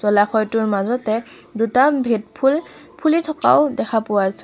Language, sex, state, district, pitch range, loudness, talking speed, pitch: Assamese, female, Assam, Kamrup Metropolitan, 210-275 Hz, -18 LUFS, 135 wpm, 225 Hz